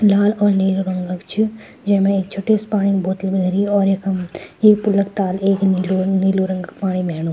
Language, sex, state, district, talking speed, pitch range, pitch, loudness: Garhwali, female, Uttarakhand, Tehri Garhwal, 230 wpm, 185-200 Hz, 195 Hz, -18 LUFS